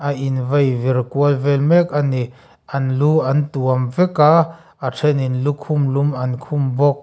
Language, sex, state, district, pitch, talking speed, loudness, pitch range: Mizo, male, Mizoram, Aizawl, 140 Hz, 180 wpm, -18 LUFS, 130-150 Hz